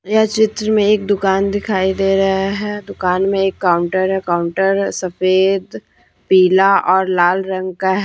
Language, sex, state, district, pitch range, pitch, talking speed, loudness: Hindi, female, Jharkhand, Deoghar, 185-200 Hz, 190 Hz, 165 wpm, -15 LUFS